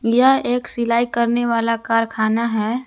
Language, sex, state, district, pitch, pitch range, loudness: Hindi, female, Jharkhand, Garhwa, 235 Hz, 230-240 Hz, -18 LUFS